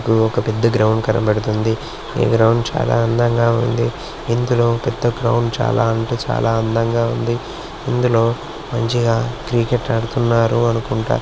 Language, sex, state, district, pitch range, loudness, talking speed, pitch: Telugu, male, Andhra Pradesh, Srikakulam, 115-120 Hz, -18 LUFS, 125 wpm, 115 Hz